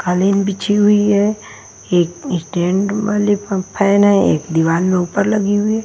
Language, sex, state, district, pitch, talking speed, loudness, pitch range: Hindi, female, Bihar, Patna, 200 Hz, 175 wpm, -15 LUFS, 180-205 Hz